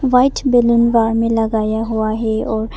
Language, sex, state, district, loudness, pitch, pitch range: Hindi, female, Arunachal Pradesh, Papum Pare, -16 LUFS, 225 Hz, 220-240 Hz